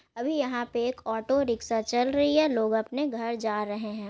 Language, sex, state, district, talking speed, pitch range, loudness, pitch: Magahi, female, Bihar, Gaya, 235 wpm, 220-270 Hz, -27 LUFS, 235 Hz